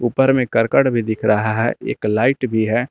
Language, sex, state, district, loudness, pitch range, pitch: Hindi, male, Jharkhand, Garhwa, -17 LUFS, 110-130 Hz, 115 Hz